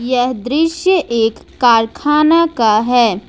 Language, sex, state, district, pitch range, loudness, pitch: Hindi, female, Jharkhand, Ranchi, 230-315 Hz, -14 LUFS, 245 Hz